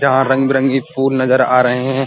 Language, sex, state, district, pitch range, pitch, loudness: Hindi, male, Uttar Pradesh, Muzaffarnagar, 130-135 Hz, 135 Hz, -14 LUFS